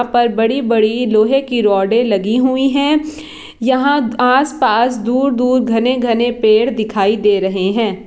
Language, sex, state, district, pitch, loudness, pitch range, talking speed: Hindi, female, Bihar, Jahanabad, 240 Hz, -14 LUFS, 220-260 Hz, 195 wpm